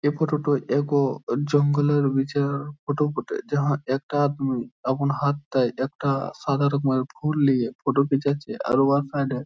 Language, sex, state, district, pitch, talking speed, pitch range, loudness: Bengali, male, West Bengal, Jhargram, 140 Hz, 170 wpm, 135-145 Hz, -24 LUFS